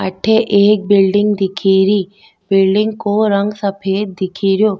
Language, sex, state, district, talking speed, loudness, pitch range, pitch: Rajasthani, female, Rajasthan, Nagaur, 135 wpm, -14 LUFS, 195-210 Hz, 200 Hz